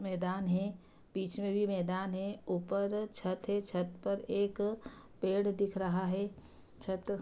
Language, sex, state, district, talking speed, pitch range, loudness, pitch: Hindi, female, Bihar, Begusarai, 160 wpm, 185-205 Hz, -36 LUFS, 195 Hz